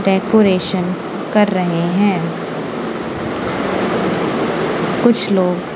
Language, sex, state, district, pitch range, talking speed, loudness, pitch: Hindi, female, Punjab, Kapurthala, 180-205 Hz, 60 wpm, -17 LUFS, 190 Hz